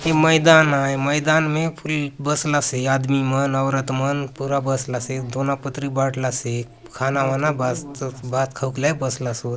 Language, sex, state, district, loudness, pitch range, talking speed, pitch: Halbi, male, Chhattisgarh, Bastar, -21 LUFS, 130-145 Hz, 155 wpm, 135 Hz